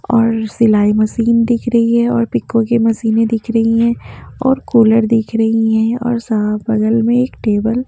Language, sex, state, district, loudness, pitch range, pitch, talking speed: Hindi, female, Haryana, Jhajjar, -14 LUFS, 220-235 Hz, 230 Hz, 190 wpm